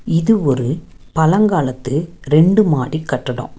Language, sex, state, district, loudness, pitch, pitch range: Tamil, female, Tamil Nadu, Nilgiris, -16 LUFS, 155 Hz, 130-170 Hz